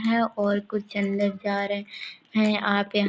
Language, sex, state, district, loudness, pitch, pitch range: Hindi, female, Chhattisgarh, Korba, -25 LUFS, 205 Hz, 200-215 Hz